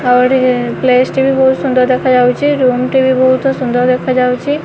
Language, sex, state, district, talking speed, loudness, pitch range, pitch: Odia, female, Odisha, Khordha, 180 wpm, -11 LUFS, 250-265 Hz, 255 Hz